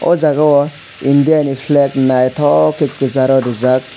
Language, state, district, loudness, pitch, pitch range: Kokborok, Tripura, West Tripura, -13 LUFS, 140 Hz, 130-145 Hz